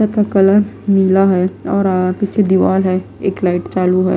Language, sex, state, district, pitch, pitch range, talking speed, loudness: Hindi, female, Himachal Pradesh, Shimla, 190 Hz, 185-200 Hz, 160 wpm, -14 LUFS